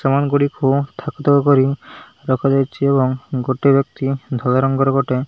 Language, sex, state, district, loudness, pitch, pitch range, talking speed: Odia, male, Odisha, Malkangiri, -17 LUFS, 135 Hz, 130-140 Hz, 150 wpm